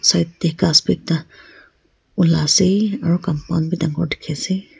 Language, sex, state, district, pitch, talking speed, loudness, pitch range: Nagamese, female, Nagaland, Kohima, 170 Hz, 140 wpm, -18 LUFS, 160-180 Hz